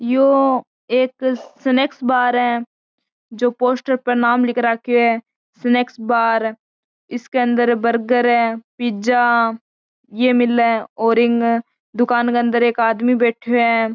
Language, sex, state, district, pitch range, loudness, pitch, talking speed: Marwari, female, Rajasthan, Churu, 230-245 Hz, -17 LUFS, 240 Hz, 120 wpm